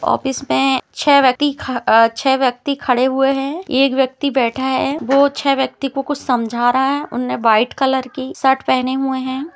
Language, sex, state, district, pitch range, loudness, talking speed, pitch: Hindi, female, Chhattisgarh, Rajnandgaon, 255-275 Hz, -16 LUFS, 190 wpm, 265 Hz